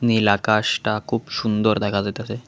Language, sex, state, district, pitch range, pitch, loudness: Bengali, male, Tripura, West Tripura, 105-115 Hz, 110 Hz, -21 LUFS